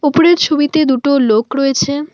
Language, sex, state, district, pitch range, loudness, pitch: Bengali, female, West Bengal, Alipurduar, 270-300 Hz, -12 LUFS, 285 Hz